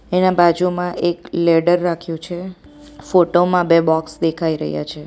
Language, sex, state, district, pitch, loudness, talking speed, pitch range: Gujarati, female, Gujarat, Valsad, 175 Hz, -17 LUFS, 155 wpm, 165-180 Hz